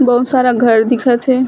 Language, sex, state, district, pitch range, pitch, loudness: Chhattisgarhi, female, Chhattisgarh, Bilaspur, 240-255 Hz, 245 Hz, -12 LUFS